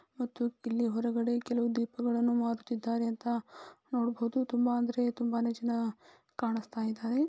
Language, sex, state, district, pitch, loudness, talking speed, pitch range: Kannada, female, Karnataka, Belgaum, 235 Hz, -33 LUFS, 115 wpm, 230-240 Hz